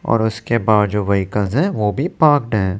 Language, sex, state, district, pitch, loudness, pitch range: Hindi, male, Chandigarh, Chandigarh, 110 Hz, -17 LUFS, 105-140 Hz